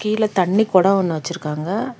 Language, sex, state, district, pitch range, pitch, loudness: Tamil, female, Karnataka, Bangalore, 175-215 Hz, 195 Hz, -19 LUFS